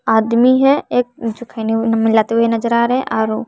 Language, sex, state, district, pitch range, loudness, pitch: Hindi, male, Bihar, West Champaran, 225-245 Hz, -15 LUFS, 230 Hz